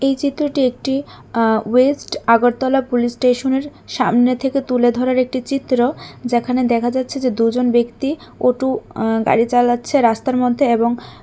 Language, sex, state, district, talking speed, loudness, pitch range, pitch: Bengali, female, Tripura, West Tripura, 155 wpm, -17 LUFS, 240-265 Hz, 250 Hz